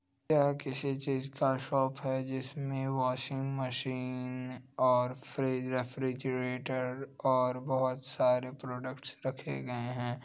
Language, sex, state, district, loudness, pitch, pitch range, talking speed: Hindi, male, Bihar, Muzaffarpur, -34 LUFS, 130 Hz, 125-135 Hz, 110 wpm